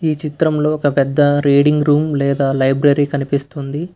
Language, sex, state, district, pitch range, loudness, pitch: Telugu, male, Karnataka, Bangalore, 140-150 Hz, -15 LUFS, 145 Hz